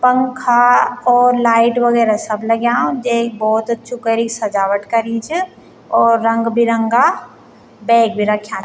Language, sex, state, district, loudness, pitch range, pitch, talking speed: Garhwali, female, Uttarakhand, Tehri Garhwal, -15 LUFS, 225-245 Hz, 230 Hz, 140 wpm